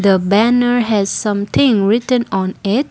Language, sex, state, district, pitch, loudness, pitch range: English, female, Assam, Kamrup Metropolitan, 210 Hz, -15 LUFS, 195-245 Hz